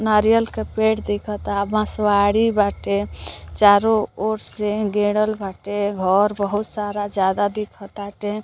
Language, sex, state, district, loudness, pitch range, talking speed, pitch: Bhojpuri, female, Uttar Pradesh, Deoria, -20 LUFS, 200-215 Hz, 120 wpm, 205 Hz